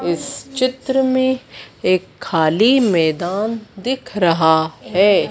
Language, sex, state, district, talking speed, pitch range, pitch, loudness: Hindi, female, Madhya Pradesh, Dhar, 100 wpm, 170-255 Hz, 205 Hz, -17 LUFS